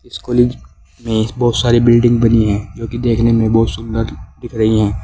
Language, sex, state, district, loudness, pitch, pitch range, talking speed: Hindi, male, Uttar Pradesh, Saharanpur, -14 LUFS, 115 Hz, 110-120 Hz, 200 wpm